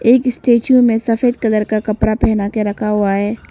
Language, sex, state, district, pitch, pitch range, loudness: Hindi, female, Arunachal Pradesh, Papum Pare, 220 Hz, 210-240 Hz, -15 LUFS